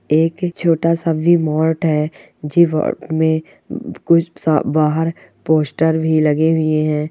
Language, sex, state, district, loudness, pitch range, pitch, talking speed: Hindi, female, Uttar Pradesh, Gorakhpur, -16 LUFS, 155-165 Hz, 160 Hz, 120 wpm